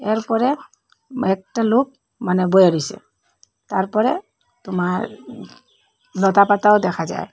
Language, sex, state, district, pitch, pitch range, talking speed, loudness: Bengali, female, Assam, Hailakandi, 210 Hz, 190-250 Hz, 100 wpm, -19 LUFS